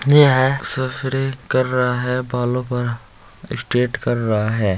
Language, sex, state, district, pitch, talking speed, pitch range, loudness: Hindi, male, Uttar Pradesh, Muzaffarnagar, 125 Hz, 150 wpm, 120-130 Hz, -19 LUFS